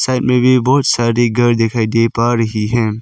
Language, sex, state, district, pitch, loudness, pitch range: Hindi, male, Arunachal Pradesh, Lower Dibang Valley, 120 Hz, -14 LUFS, 115-125 Hz